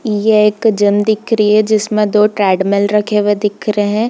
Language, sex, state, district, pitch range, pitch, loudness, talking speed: Hindi, female, Jharkhand, Sahebganj, 205-215 Hz, 210 Hz, -13 LUFS, 205 wpm